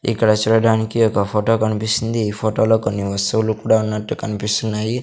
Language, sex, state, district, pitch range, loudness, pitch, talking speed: Telugu, male, Andhra Pradesh, Sri Satya Sai, 105-115 Hz, -18 LUFS, 110 Hz, 155 wpm